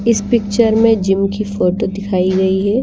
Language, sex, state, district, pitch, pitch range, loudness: Hindi, female, Bihar, Patna, 200 Hz, 195-225 Hz, -15 LUFS